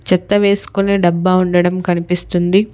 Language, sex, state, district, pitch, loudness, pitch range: Telugu, female, Telangana, Hyderabad, 185 Hz, -15 LUFS, 175-195 Hz